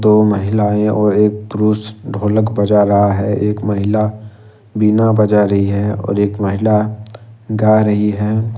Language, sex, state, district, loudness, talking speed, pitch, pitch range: Hindi, male, Jharkhand, Ranchi, -14 LUFS, 145 wpm, 105 Hz, 105-110 Hz